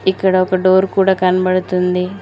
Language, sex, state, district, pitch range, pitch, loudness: Telugu, female, Telangana, Mahabubabad, 185-190 Hz, 185 Hz, -14 LUFS